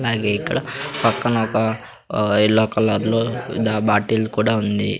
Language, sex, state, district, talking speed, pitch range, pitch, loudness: Telugu, male, Andhra Pradesh, Sri Satya Sai, 130 wpm, 105-115 Hz, 110 Hz, -19 LUFS